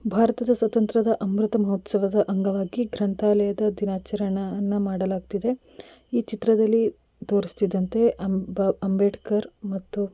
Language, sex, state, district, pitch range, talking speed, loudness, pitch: Kannada, female, Karnataka, Dakshina Kannada, 195-225 Hz, 75 wpm, -24 LUFS, 205 Hz